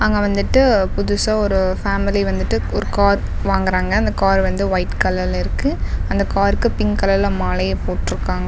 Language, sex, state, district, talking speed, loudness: Tamil, female, Tamil Nadu, Namakkal, 155 wpm, -18 LUFS